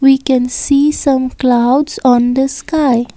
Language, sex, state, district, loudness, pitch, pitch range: English, female, Assam, Kamrup Metropolitan, -13 LUFS, 265 Hz, 250-275 Hz